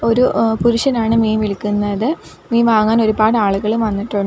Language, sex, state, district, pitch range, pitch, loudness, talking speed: Malayalam, female, Kerala, Kollam, 205-230 Hz, 220 Hz, -16 LUFS, 155 wpm